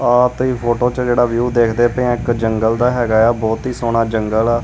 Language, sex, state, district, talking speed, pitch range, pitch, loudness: Punjabi, male, Punjab, Kapurthala, 245 wpm, 115-125 Hz, 120 Hz, -16 LUFS